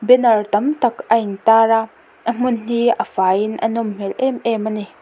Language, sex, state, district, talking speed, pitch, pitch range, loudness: Mizo, female, Mizoram, Aizawl, 225 wpm, 225 Hz, 215-240 Hz, -17 LUFS